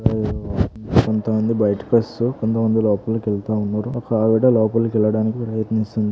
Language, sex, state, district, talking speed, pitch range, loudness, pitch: Telugu, male, Andhra Pradesh, Krishna, 125 wpm, 105-115 Hz, -19 LUFS, 110 Hz